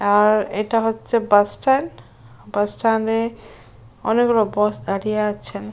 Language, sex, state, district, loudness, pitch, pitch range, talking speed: Bengali, female, West Bengal, Jalpaiguri, -19 LUFS, 210 Hz, 195-225 Hz, 135 wpm